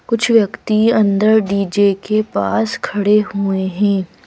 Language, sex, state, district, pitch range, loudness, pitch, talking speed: Hindi, female, Madhya Pradesh, Bhopal, 200-220 Hz, -15 LUFS, 210 Hz, 125 wpm